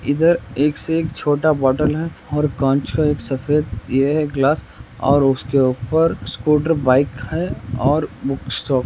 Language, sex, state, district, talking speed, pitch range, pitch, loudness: Hindi, male, Rajasthan, Nagaur, 160 wpm, 130-150 Hz, 145 Hz, -19 LUFS